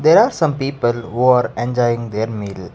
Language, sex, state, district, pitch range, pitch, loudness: English, male, Karnataka, Bangalore, 115-135 Hz, 120 Hz, -17 LUFS